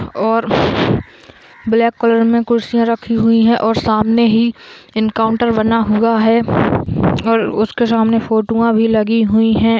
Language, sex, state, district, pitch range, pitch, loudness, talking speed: Hindi, female, Bihar, Bhagalpur, 220-230 Hz, 225 Hz, -14 LUFS, 140 wpm